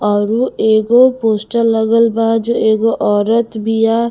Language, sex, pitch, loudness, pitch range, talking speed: Bhojpuri, female, 225 Hz, -13 LUFS, 220-230 Hz, 130 wpm